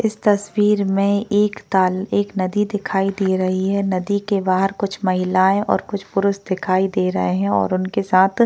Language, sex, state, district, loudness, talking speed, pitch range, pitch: Hindi, female, Maharashtra, Chandrapur, -19 LUFS, 190 wpm, 185-200 Hz, 195 Hz